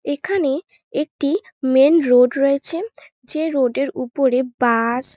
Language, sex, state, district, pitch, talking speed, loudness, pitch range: Bengali, female, West Bengal, North 24 Parganas, 275 Hz, 125 wpm, -18 LUFS, 255-320 Hz